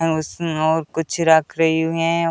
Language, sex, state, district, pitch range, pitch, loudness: Hindi, male, Uttar Pradesh, Deoria, 160-165 Hz, 165 Hz, -19 LUFS